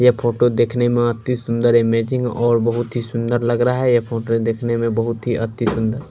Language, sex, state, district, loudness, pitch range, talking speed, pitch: Hindi, male, Chhattisgarh, Raipur, -18 LUFS, 115-120 Hz, 215 wpm, 120 Hz